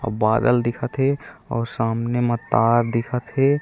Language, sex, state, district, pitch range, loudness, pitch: Chhattisgarhi, male, Chhattisgarh, Raigarh, 115-125 Hz, -21 LUFS, 120 Hz